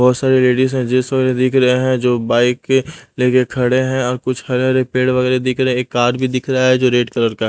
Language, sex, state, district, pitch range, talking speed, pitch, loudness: Hindi, male, Punjab, Pathankot, 125-130 Hz, 295 wpm, 130 Hz, -15 LUFS